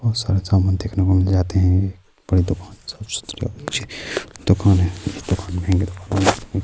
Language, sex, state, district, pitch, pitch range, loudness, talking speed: Urdu, male, Bihar, Saharsa, 95 Hz, 95-100 Hz, -20 LUFS, 115 wpm